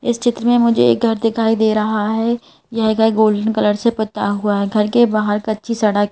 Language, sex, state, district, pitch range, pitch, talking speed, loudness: Hindi, female, Madhya Pradesh, Bhopal, 210-230 Hz, 220 Hz, 225 wpm, -16 LUFS